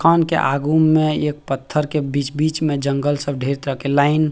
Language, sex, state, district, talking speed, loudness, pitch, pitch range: Maithili, male, Bihar, Purnia, 220 wpm, -19 LUFS, 150 Hz, 140-155 Hz